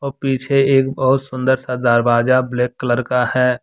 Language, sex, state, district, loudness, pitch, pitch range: Hindi, male, Jharkhand, Deoghar, -17 LUFS, 130 Hz, 125-135 Hz